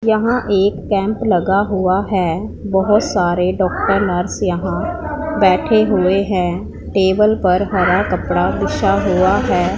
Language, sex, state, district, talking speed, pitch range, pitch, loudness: Hindi, female, Punjab, Pathankot, 130 wpm, 185-210 Hz, 195 Hz, -16 LUFS